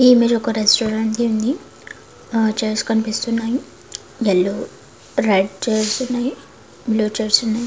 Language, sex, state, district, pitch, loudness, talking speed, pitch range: Telugu, female, Telangana, Karimnagar, 225 Hz, -19 LUFS, 125 wpm, 215-235 Hz